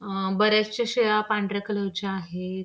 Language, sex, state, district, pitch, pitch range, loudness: Marathi, female, Maharashtra, Pune, 205 Hz, 190-215 Hz, -25 LUFS